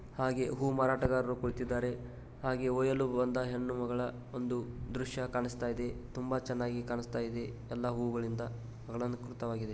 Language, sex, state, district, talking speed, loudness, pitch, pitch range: Kannada, male, Karnataka, Dharwad, 125 wpm, -36 LUFS, 125 Hz, 120-125 Hz